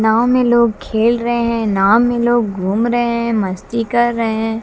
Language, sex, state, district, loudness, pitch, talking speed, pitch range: Hindi, female, Haryana, Jhajjar, -15 LUFS, 230 Hz, 205 wpm, 220-240 Hz